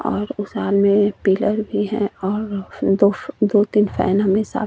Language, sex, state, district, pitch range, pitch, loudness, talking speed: Hindi, female, Uttar Pradesh, Jalaun, 200-210 Hz, 205 Hz, -19 LUFS, 205 wpm